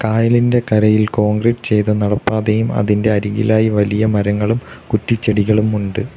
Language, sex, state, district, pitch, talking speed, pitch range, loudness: Malayalam, male, Kerala, Kollam, 110 Hz, 105 wpm, 105-110 Hz, -15 LUFS